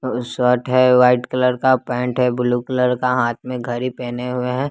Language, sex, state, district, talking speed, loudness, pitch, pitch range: Hindi, male, Bihar, West Champaran, 205 wpm, -18 LUFS, 125 Hz, 125-130 Hz